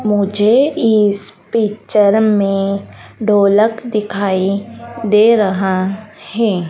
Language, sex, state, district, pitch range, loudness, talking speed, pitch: Hindi, female, Madhya Pradesh, Dhar, 200-220 Hz, -14 LUFS, 80 wpm, 210 Hz